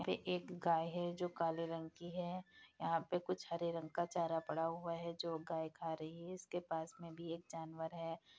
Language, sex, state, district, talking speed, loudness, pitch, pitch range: Hindi, female, Bihar, Madhepura, 215 wpm, -43 LUFS, 170 Hz, 165-175 Hz